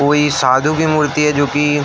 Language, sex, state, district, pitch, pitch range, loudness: Hindi, male, Uttar Pradesh, Varanasi, 145 Hz, 145-150 Hz, -14 LUFS